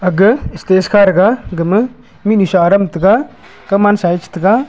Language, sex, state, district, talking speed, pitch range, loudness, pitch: Wancho, male, Arunachal Pradesh, Longding, 180 wpm, 180-205 Hz, -12 LUFS, 195 Hz